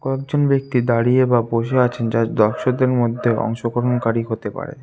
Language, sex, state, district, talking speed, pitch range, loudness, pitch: Bengali, male, West Bengal, Alipurduar, 150 wpm, 115-130 Hz, -19 LUFS, 120 Hz